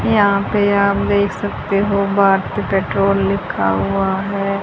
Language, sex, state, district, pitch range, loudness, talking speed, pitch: Hindi, female, Haryana, Rohtak, 195-200 Hz, -16 LUFS, 140 wpm, 200 Hz